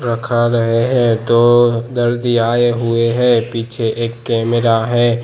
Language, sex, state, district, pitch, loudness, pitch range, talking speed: Hindi, male, Gujarat, Gandhinagar, 120 Hz, -15 LUFS, 115-120 Hz, 135 wpm